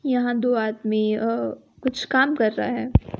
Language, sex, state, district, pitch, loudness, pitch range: Hindi, female, Bihar, West Champaran, 240 Hz, -23 LUFS, 215-260 Hz